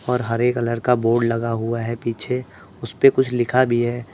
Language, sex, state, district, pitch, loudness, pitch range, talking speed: Hindi, male, Uttar Pradesh, Etah, 120 Hz, -20 LUFS, 115-125 Hz, 205 wpm